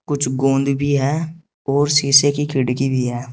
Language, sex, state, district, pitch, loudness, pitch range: Hindi, male, Uttar Pradesh, Saharanpur, 140 Hz, -17 LUFS, 135-145 Hz